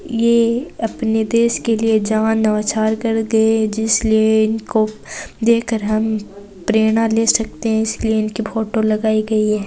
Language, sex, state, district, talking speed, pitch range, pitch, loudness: Hindi, female, Rajasthan, Churu, 150 wpm, 215-225 Hz, 220 Hz, -17 LUFS